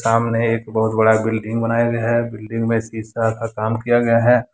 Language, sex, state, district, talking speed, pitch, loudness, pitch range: Hindi, male, Jharkhand, Deoghar, 210 wpm, 115 Hz, -19 LUFS, 110-115 Hz